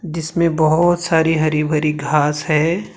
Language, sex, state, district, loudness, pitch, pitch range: Hindi, male, Maharashtra, Gondia, -17 LUFS, 160 Hz, 150-165 Hz